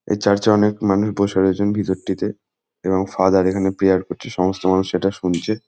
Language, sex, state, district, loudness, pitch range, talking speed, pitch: Bengali, male, West Bengal, Jhargram, -19 LUFS, 95-105 Hz, 180 wpm, 95 Hz